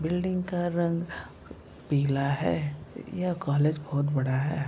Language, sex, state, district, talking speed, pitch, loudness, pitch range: Hindi, male, Uttar Pradesh, Deoria, 130 wpm, 145 Hz, -28 LUFS, 140-170 Hz